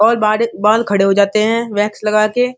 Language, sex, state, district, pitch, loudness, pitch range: Hindi, male, Uttar Pradesh, Muzaffarnagar, 215 Hz, -14 LUFS, 210-230 Hz